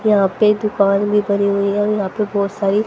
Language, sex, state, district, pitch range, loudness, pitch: Hindi, female, Haryana, Jhajjar, 200-210 Hz, -17 LUFS, 205 Hz